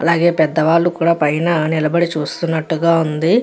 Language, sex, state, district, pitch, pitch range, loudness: Telugu, female, Andhra Pradesh, Guntur, 165 Hz, 155-170 Hz, -16 LUFS